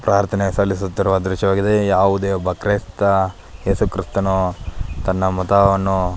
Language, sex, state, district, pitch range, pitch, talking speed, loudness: Kannada, male, Karnataka, Belgaum, 95-100 Hz, 95 Hz, 115 wpm, -18 LUFS